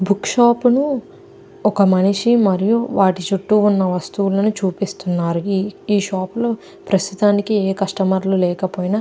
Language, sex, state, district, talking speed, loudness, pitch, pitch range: Telugu, female, Andhra Pradesh, Chittoor, 140 wpm, -17 LUFS, 195 Hz, 190-210 Hz